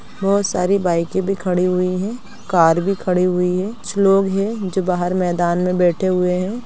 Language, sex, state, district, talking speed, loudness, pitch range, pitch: Hindi, female, Bihar, East Champaran, 200 wpm, -18 LUFS, 180-195 Hz, 185 Hz